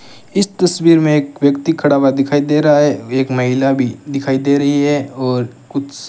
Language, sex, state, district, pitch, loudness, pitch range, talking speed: Hindi, male, Rajasthan, Bikaner, 140 Hz, -15 LUFS, 135-150 Hz, 205 wpm